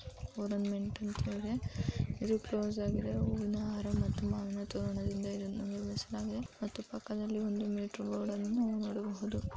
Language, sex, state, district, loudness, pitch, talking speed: Kannada, female, Karnataka, Raichur, -37 LUFS, 205 Hz, 120 wpm